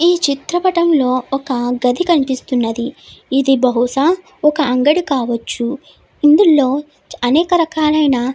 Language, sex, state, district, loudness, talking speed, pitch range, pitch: Telugu, female, Andhra Pradesh, Chittoor, -15 LUFS, 115 wpm, 255-320 Hz, 280 Hz